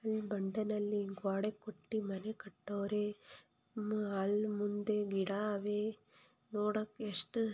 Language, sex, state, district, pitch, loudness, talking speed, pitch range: Kannada, female, Karnataka, Mysore, 210 Hz, -38 LUFS, 95 wpm, 200-215 Hz